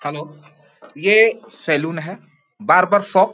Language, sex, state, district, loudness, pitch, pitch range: Hindi, male, Bihar, Samastipur, -16 LUFS, 165 Hz, 150-200 Hz